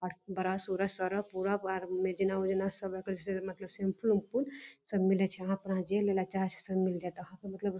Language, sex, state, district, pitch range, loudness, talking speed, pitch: Maithili, female, Bihar, Darbhanga, 185-195 Hz, -34 LUFS, 240 wpm, 190 Hz